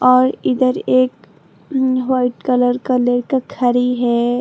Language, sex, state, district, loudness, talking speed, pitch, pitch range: Hindi, female, Tripura, Dhalai, -16 LUFS, 120 wpm, 255 Hz, 245-255 Hz